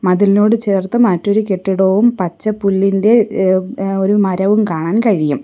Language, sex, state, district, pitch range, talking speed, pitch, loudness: Malayalam, female, Kerala, Kollam, 190-215 Hz, 130 wpm, 195 Hz, -14 LUFS